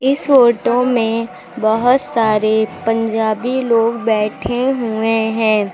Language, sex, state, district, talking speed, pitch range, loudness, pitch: Hindi, female, Uttar Pradesh, Lucknow, 105 wpm, 220-245 Hz, -15 LUFS, 225 Hz